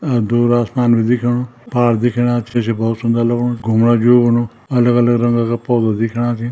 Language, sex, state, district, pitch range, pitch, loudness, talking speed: Garhwali, male, Uttarakhand, Tehri Garhwal, 115-120 Hz, 120 Hz, -15 LUFS, 195 wpm